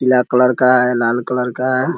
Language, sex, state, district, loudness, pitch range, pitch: Hindi, male, Bihar, Muzaffarpur, -15 LUFS, 125-130 Hz, 125 Hz